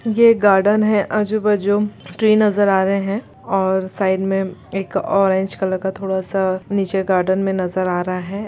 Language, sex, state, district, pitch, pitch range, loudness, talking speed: Hindi, female, Bihar, Gopalganj, 195 Hz, 190-205 Hz, -18 LUFS, 185 wpm